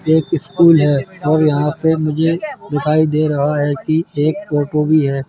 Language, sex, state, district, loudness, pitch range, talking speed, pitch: Hindi, male, Madhya Pradesh, Bhopal, -15 LUFS, 145-160 Hz, 195 wpm, 155 Hz